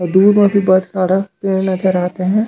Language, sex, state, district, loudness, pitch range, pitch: Chhattisgarhi, male, Chhattisgarh, Raigarh, -14 LUFS, 185-200 Hz, 190 Hz